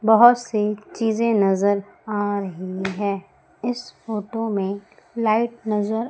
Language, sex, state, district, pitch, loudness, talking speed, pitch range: Hindi, female, Madhya Pradesh, Umaria, 210 Hz, -22 LUFS, 120 wpm, 200-225 Hz